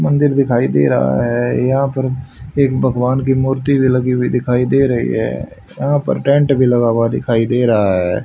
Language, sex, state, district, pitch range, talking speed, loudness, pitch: Hindi, male, Haryana, Rohtak, 120-135 Hz, 205 wpm, -15 LUFS, 125 Hz